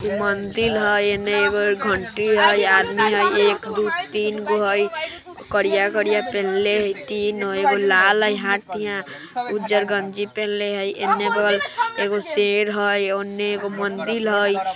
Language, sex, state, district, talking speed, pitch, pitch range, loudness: Maithili, male, Bihar, Vaishali, 140 wpm, 205 Hz, 200-210 Hz, -20 LUFS